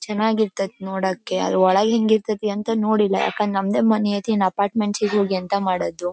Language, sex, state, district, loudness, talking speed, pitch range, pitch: Kannada, female, Karnataka, Bellary, -20 LUFS, 165 wpm, 195-215 Hz, 205 Hz